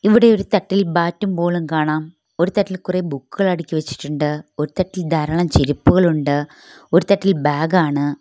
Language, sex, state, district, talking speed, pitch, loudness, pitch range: Malayalam, female, Kerala, Kollam, 145 wpm, 170 Hz, -18 LUFS, 150-185 Hz